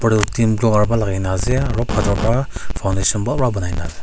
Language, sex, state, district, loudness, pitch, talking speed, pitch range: Nagamese, male, Nagaland, Kohima, -18 LUFS, 105 Hz, 225 wpm, 95-115 Hz